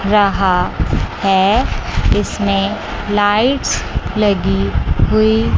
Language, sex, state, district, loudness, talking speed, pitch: Hindi, female, Chandigarh, Chandigarh, -15 LUFS, 55 wpm, 195 Hz